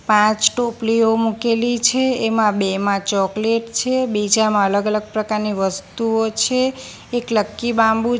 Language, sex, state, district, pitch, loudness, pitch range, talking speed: Gujarati, female, Gujarat, Valsad, 225 Hz, -18 LUFS, 210-235 Hz, 130 wpm